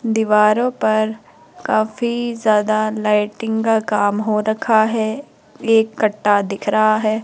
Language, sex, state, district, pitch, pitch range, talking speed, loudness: Hindi, female, Rajasthan, Jaipur, 215 Hz, 210-225 Hz, 125 wpm, -17 LUFS